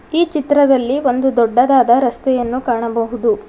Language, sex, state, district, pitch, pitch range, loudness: Kannada, female, Karnataka, Bangalore, 255 Hz, 240-275 Hz, -15 LUFS